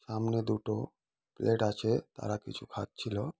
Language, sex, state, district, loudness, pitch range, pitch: Bengali, male, West Bengal, Kolkata, -34 LUFS, 105-115 Hz, 110 Hz